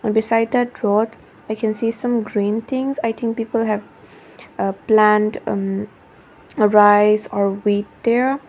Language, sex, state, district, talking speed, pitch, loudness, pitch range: English, female, Nagaland, Dimapur, 140 wpm, 220 Hz, -18 LUFS, 210-230 Hz